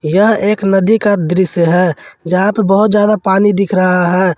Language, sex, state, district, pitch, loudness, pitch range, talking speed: Hindi, male, Jharkhand, Ranchi, 195 Hz, -12 LUFS, 180-205 Hz, 190 wpm